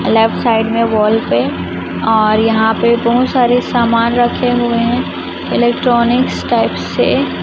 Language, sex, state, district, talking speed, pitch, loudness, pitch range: Hindi, female, Chhattisgarh, Raipur, 135 wpm, 235 Hz, -13 LUFS, 225-240 Hz